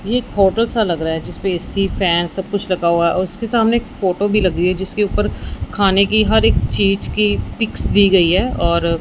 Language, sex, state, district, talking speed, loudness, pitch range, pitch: Hindi, female, Punjab, Fazilka, 255 wpm, -16 LUFS, 180-210 Hz, 195 Hz